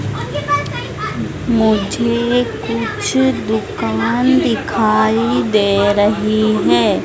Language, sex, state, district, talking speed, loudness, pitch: Hindi, female, Madhya Pradesh, Dhar, 60 wpm, -16 LUFS, 200 Hz